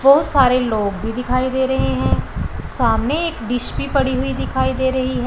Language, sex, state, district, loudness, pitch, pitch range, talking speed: Hindi, female, Punjab, Pathankot, -19 LUFS, 260 Hz, 245-265 Hz, 205 wpm